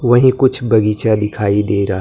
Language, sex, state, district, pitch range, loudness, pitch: Hindi, male, Maharashtra, Gondia, 105-120 Hz, -14 LUFS, 110 Hz